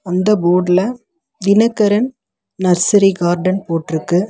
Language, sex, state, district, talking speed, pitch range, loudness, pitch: Tamil, female, Tamil Nadu, Chennai, 85 wpm, 175-210 Hz, -15 LUFS, 190 Hz